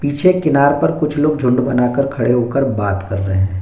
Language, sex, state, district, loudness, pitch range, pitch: Hindi, male, Bihar, Bhagalpur, -16 LUFS, 105-145 Hz, 130 Hz